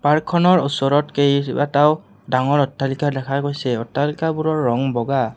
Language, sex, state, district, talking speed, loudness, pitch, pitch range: Assamese, male, Assam, Kamrup Metropolitan, 125 wpm, -19 LUFS, 145 Hz, 135-150 Hz